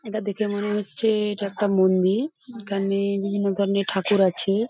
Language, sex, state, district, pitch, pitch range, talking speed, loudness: Bengali, female, West Bengal, Paschim Medinipur, 200 Hz, 195-210 Hz, 155 wpm, -23 LUFS